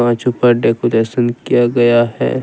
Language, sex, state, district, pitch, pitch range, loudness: Hindi, male, Jharkhand, Deoghar, 120 Hz, 115-120 Hz, -14 LUFS